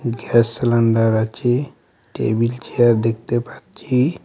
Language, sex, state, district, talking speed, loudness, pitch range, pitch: Bengali, male, West Bengal, Alipurduar, 100 wpm, -18 LUFS, 115-120 Hz, 120 Hz